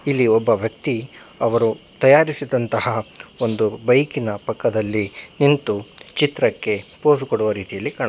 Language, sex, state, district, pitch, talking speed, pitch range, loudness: Kannada, male, Karnataka, Bangalore, 115 Hz, 95 wpm, 110-140 Hz, -18 LUFS